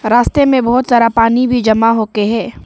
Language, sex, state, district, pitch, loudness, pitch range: Hindi, female, Arunachal Pradesh, Papum Pare, 230 Hz, -12 LUFS, 225-245 Hz